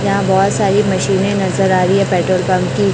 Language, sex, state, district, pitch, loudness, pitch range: Hindi, male, Chhattisgarh, Raipur, 190 Hz, -14 LUFS, 185-195 Hz